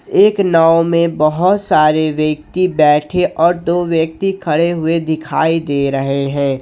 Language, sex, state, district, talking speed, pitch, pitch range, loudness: Hindi, male, Jharkhand, Ranchi, 145 wpm, 165 Hz, 155-175 Hz, -14 LUFS